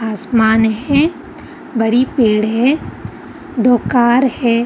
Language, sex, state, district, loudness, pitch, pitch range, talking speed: Hindi, female, Bihar, Vaishali, -14 LUFS, 245 Hz, 225-280 Hz, 105 wpm